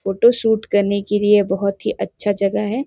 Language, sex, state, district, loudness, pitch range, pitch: Hindi, female, Chhattisgarh, Sarguja, -18 LUFS, 200-220 Hz, 205 Hz